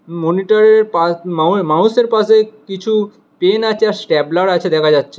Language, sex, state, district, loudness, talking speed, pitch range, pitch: Bengali, male, West Bengal, Alipurduar, -14 LUFS, 150 wpm, 170-220 Hz, 200 Hz